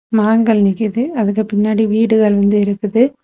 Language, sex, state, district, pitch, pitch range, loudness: Tamil, female, Tamil Nadu, Kanyakumari, 220 Hz, 210-225 Hz, -14 LUFS